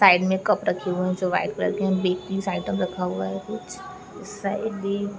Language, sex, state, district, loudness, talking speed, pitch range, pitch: Hindi, female, Chhattisgarh, Raigarh, -25 LUFS, 240 wpm, 185-200 Hz, 190 Hz